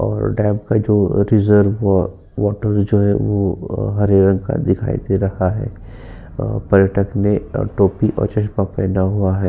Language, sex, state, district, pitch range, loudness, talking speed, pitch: Hindi, male, Uttar Pradesh, Jyotiba Phule Nagar, 95-105 Hz, -17 LUFS, 160 wpm, 100 Hz